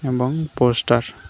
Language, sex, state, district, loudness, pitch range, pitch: Bengali, male, Tripura, West Tripura, -20 LUFS, 120-135 Hz, 125 Hz